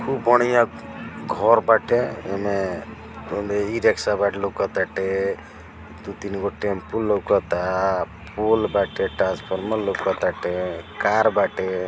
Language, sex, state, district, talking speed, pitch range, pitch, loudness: Bhojpuri, male, Bihar, East Champaran, 115 wpm, 95-110 Hz, 100 Hz, -22 LUFS